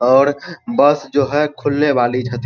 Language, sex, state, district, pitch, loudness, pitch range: Maithili, male, Bihar, Supaul, 145 Hz, -16 LUFS, 125-150 Hz